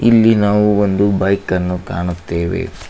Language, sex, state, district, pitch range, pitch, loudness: Kannada, male, Karnataka, Koppal, 90-105 Hz, 100 Hz, -15 LUFS